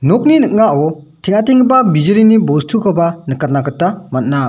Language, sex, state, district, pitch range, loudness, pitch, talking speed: Garo, male, Meghalaya, West Garo Hills, 145-220 Hz, -12 LUFS, 175 Hz, 105 wpm